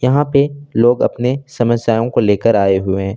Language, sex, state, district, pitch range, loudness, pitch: Hindi, male, Jharkhand, Deoghar, 105-140 Hz, -15 LUFS, 120 Hz